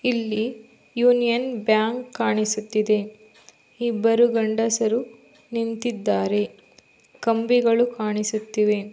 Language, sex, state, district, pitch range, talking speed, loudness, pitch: Kannada, female, Karnataka, Belgaum, 215-235 Hz, 60 wpm, -22 LUFS, 225 Hz